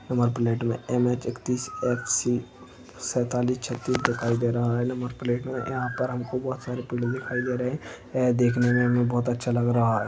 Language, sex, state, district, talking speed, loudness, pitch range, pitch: Hindi, male, Maharashtra, Nagpur, 185 wpm, -26 LUFS, 120-125 Hz, 125 Hz